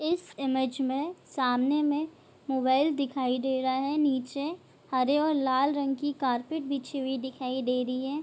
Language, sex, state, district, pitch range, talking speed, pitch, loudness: Hindi, female, Bihar, Bhagalpur, 260-290 Hz, 170 wpm, 270 Hz, -29 LUFS